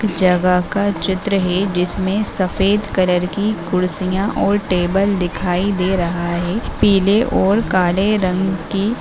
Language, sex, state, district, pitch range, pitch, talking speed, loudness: Hindi, female, Bihar, Purnia, 180-200 Hz, 190 Hz, 145 wpm, -17 LUFS